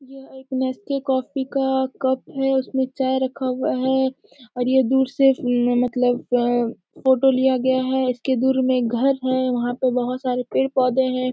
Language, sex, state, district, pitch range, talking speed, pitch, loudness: Hindi, female, Bihar, Jamui, 250-265 Hz, 205 wpm, 260 Hz, -21 LUFS